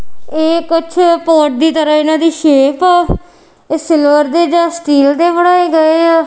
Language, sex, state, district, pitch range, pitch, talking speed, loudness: Punjabi, female, Punjab, Kapurthala, 305-335 Hz, 320 Hz, 170 wpm, -11 LUFS